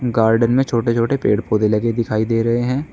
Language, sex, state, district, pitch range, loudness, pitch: Hindi, male, Uttar Pradesh, Saharanpur, 110-120 Hz, -17 LUFS, 115 Hz